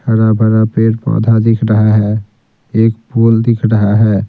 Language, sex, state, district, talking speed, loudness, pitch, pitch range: Hindi, male, Bihar, Patna, 140 wpm, -12 LUFS, 110 Hz, 110-115 Hz